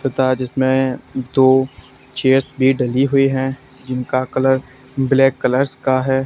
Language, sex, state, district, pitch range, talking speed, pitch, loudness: Hindi, male, Haryana, Charkhi Dadri, 130-135 Hz, 135 wpm, 130 Hz, -17 LUFS